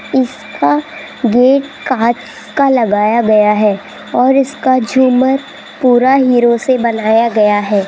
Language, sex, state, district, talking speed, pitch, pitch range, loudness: Hindi, female, Rajasthan, Jaipur, 120 wpm, 240 Hz, 215-260 Hz, -12 LUFS